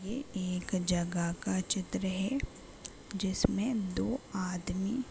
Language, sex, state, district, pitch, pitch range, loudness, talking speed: Hindi, female, Uttar Pradesh, Gorakhpur, 190 Hz, 185-220 Hz, -34 LUFS, 120 wpm